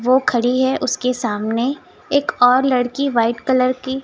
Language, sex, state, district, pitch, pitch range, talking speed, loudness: Hindi, female, Chhattisgarh, Raipur, 255 Hz, 245-265 Hz, 165 wpm, -18 LUFS